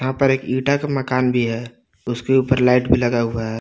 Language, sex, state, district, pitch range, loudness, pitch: Hindi, male, Jharkhand, Palamu, 120-130 Hz, -19 LUFS, 125 Hz